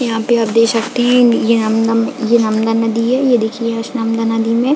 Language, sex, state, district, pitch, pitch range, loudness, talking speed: Hindi, female, Chhattisgarh, Bilaspur, 230 Hz, 225-240 Hz, -14 LUFS, 240 wpm